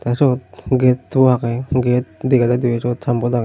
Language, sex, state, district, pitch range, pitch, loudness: Chakma, male, Tripura, Unakoti, 120-130 Hz, 125 Hz, -17 LUFS